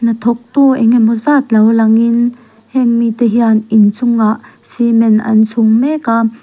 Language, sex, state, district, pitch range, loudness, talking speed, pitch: Mizo, female, Mizoram, Aizawl, 220-240 Hz, -11 LUFS, 160 wpm, 230 Hz